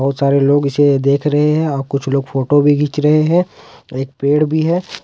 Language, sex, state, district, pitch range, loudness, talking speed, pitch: Hindi, male, Jharkhand, Ranchi, 140-150 Hz, -14 LUFS, 225 wpm, 145 Hz